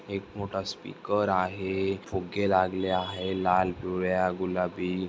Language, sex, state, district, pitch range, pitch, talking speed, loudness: Marathi, male, Maharashtra, Dhule, 90-95 Hz, 95 Hz, 120 wpm, -29 LUFS